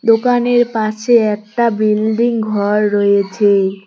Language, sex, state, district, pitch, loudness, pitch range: Bengali, female, West Bengal, Cooch Behar, 215 Hz, -14 LUFS, 205-235 Hz